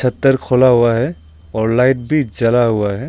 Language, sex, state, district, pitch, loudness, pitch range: Hindi, male, Arunachal Pradesh, Longding, 120 Hz, -14 LUFS, 110-130 Hz